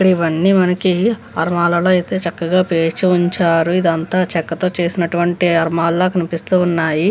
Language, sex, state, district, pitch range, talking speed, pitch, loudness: Telugu, female, Andhra Pradesh, Visakhapatnam, 165-185 Hz, 100 wpm, 175 Hz, -16 LUFS